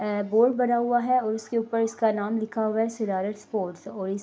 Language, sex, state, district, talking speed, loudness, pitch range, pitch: Urdu, female, Andhra Pradesh, Anantapur, 225 wpm, -26 LUFS, 205-230 Hz, 220 Hz